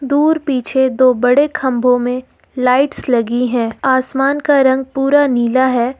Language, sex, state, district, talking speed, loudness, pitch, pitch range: Hindi, female, Jharkhand, Ranchi, 150 wpm, -14 LUFS, 260 Hz, 250-275 Hz